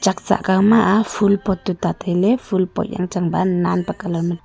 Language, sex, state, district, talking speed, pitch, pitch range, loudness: Wancho, female, Arunachal Pradesh, Longding, 245 wpm, 190 Hz, 180-205 Hz, -18 LUFS